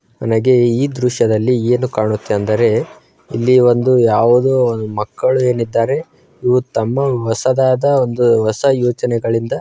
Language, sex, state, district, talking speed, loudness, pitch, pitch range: Kannada, male, Karnataka, Bijapur, 105 wpm, -15 LUFS, 120 Hz, 115-130 Hz